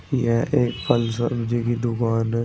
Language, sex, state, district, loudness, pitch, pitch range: Hindi, male, Uttar Pradesh, Saharanpur, -22 LUFS, 120 Hz, 115-120 Hz